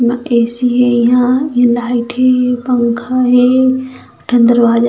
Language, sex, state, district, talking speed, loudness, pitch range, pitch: Chhattisgarhi, female, Chhattisgarh, Jashpur, 135 wpm, -12 LUFS, 240-255 Hz, 245 Hz